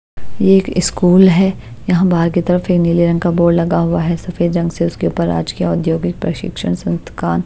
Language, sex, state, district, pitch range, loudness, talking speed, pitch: Hindi, female, Haryana, Jhajjar, 165-180 Hz, -15 LUFS, 210 wpm, 170 Hz